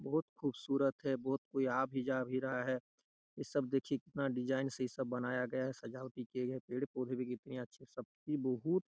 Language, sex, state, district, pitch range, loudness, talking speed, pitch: Hindi, male, Chhattisgarh, Raigarh, 125-135 Hz, -39 LUFS, 220 wpm, 130 Hz